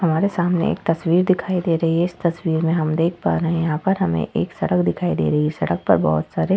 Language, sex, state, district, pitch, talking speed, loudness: Hindi, female, Uttar Pradesh, Etah, 165 Hz, 265 wpm, -20 LUFS